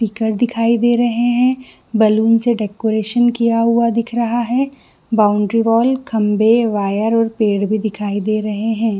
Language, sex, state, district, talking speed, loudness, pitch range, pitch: Hindi, female, Chhattisgarh, Bilaspur, 160 wpm, -16 LUFS, 215-235 Hz, 225 Hz